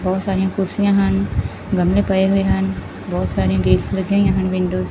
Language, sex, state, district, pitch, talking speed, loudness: Punjabi, female, Punjab, Fazilka, 180 Hz, 195 wpm, -18 LUFS